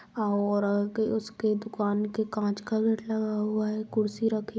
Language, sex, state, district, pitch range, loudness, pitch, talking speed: Angika, female, Bihar, Supaul, 210-220 Hz, -29 LUFS, 215 Hz, 185 wpm